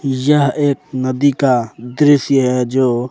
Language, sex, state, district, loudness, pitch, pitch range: Hindi, male, Jharkhand, Ranchi, -15 LUFS, 135 Hz, 125-145 Hz